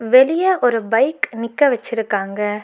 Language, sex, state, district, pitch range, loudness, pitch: Tamil, female, Tamil Nadu, Nilgiris, 220-280 Hz, -17 LUFS, 235 Hz